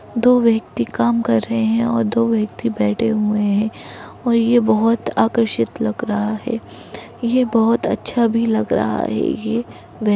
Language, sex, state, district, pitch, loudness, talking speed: Hindi, female, Uttar Pradesh, Ghazipur, 220 Hz, -18 LUFS, 170 wpm